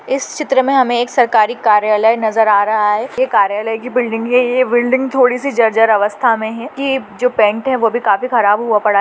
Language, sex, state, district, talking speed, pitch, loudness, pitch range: Hindi, female, Rajasthan, Churu, 235 wpm, 235 Hz, -14 LUFS, 215-255 Hz